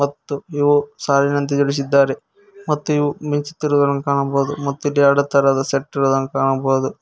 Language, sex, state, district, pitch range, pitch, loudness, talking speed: Kannada, male, Karnataka, Koppal, 140-145 Hz, 140 Hz, -18 LUFS, 130 wpm